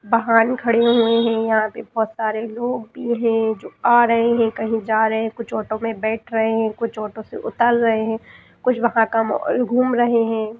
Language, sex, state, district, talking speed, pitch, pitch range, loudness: Hindi, female, Bihar, Madhepura, 210 wpm, 225 Hz, 220-235 Hz, -19 LUFS